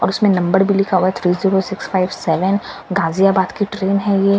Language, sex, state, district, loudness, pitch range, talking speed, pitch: Hindi, female, Delhi, New Delhi, -17 LUFS, 185-200 Hz, 230 wpm, 195 Hz